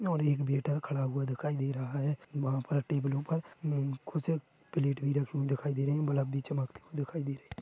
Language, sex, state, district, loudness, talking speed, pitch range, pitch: Hindi, male, Chhattisgarh, Korba, -33 LUFS, 205 wpm, 135-150 Hz, 140 Hz